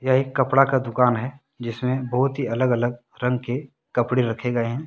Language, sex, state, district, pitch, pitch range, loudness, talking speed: Hindi, male, Jharkhand, Deoghar, 125 Hz, 120-130 Hz, -23 LUFS, 195 wpm